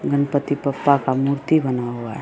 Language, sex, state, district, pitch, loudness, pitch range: Hindi, female, Bihar, Samastipur, 140 Hz, -20 LUFS, 130-145 Hz